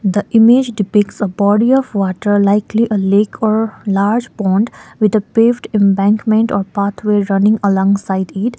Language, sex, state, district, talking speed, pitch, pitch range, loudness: English, female, Sikkim, Gangtok, 155 wpm, 205 Hz, 200-220 Hz, -14 LUFS